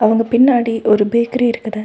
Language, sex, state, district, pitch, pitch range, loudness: Tamil, female, Tamil Nadu, Nilgiris, 230 Hz, 220-240 Hz, -14 LUFS